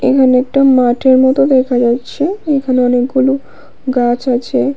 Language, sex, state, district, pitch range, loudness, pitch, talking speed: Bengali, female, Tripura, West Tripura, 250-275 Hz, -12 LUFS, 260 Hz, 125 wpm